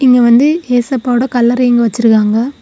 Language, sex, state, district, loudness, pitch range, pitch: Tamil, female, Tamil Nadu, Kanyakumari, -11 LUFS, 235-255 Hz, 245 Hz